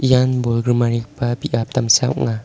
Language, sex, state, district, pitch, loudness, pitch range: Garo, male, Meghalaya, South Garo Hills, 120 Hz, -18 LUFS, 115-125 Hz